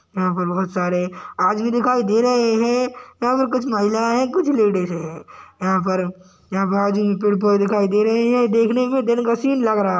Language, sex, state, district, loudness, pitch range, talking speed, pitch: Hindi, male, Uttarakhand, Tehri Garhwal, -19 LUFS, 190-240 Hz, 215 wpm, 210 Hz